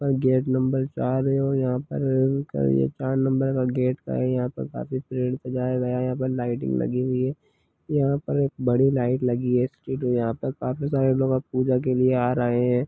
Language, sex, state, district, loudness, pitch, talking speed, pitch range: Hindi, male, Chhattisgarh, Kabirdham, -24 LUFS, 130 Hz, 205 wpm, 125-135 Hz